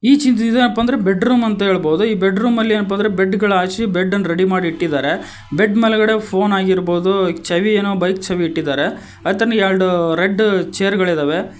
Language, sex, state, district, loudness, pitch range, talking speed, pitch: Kannada, male, Karnataka, Koppal, -16 LUFS, 180-215 Hz, 150 wpm, 195 Hz